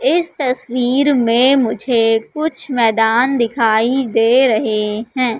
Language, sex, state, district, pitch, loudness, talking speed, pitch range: Hindi, female, Madhya Pradesh, Katni, 245 Hz, -15 LUFS, 110 wpm, 225-265 Hz